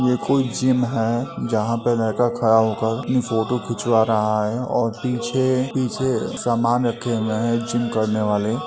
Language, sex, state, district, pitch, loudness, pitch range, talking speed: Hindi, male, Uttar Pradesh, Etah, 120 Hz, -21 LUFS, 110-125 Hz, 165 wpm